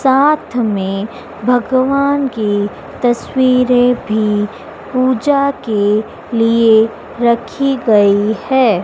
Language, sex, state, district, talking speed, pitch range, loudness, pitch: Hindi, female, Madhya Pradesh, Dhar, 80 wpm, 215-260 Hz, -14 LUFS, 240 Hz